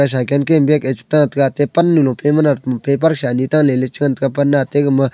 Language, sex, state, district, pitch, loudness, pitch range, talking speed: Wancho, male, Arunachal Pradesh, Longding, 140 Hz, -15 LUFS, 130-150 Hz, 270 wpm